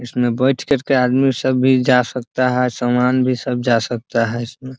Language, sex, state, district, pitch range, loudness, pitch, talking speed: Hindi, male, Bihar, Muzaffarpur, 120-130 Hz, -17 LUFS, 125 Hz, 225 wpm